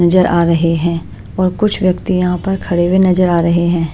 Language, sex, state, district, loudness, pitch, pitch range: Hindi, female, Maharashtra, Washim, -14 LUFS, 180 Hz, 170-185 Hz